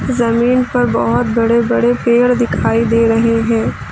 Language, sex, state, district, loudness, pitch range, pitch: Hindi, female, Uttar Pradesh, Lucknow, -13 LUFS, 230-245 Hz, 235 Hz